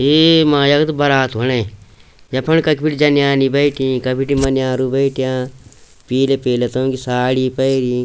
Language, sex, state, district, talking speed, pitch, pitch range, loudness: Garhwali, male, Uttarakhand, Tehri Garhwal, 150 wpm, 130 Hz, 130-140 Hz, -15 LUFS